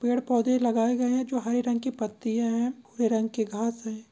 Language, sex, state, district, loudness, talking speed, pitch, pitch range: Hindi, male, Chhattisgarh, Korba, -27 LUFS, 220 wpm, 235 Hz, 225-245 Hz